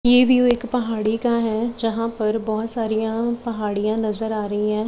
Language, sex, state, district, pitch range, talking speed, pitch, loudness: Hindi, female, Chhattisgarh, Raipur, 215-235 Hz, 185 wpm, 225 Hz, -21 LUFS